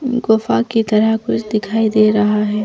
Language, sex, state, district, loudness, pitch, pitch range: Hindi, female, Chhattisgarh, Bastar, -15 LUFS, 220 Hz, 210-225 Hz